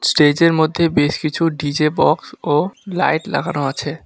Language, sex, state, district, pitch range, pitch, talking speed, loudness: Bengali, male, West Bengal, Alipurduar, 145-170 Hz, 155 Hz, 150 wpm, -17 LUFS